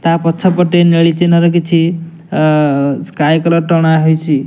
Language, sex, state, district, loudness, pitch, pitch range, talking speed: Odia, male, Odisha, Nuapada, -11 LUFS, 165 Hz, 160-170 Hz, 160 wpm